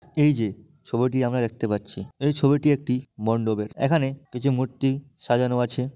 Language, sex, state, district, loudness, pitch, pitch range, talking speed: Bengali, male, West Bengal, Malda, -24 LUFS, 130 Hz, 115-140 Hz, 150 wpm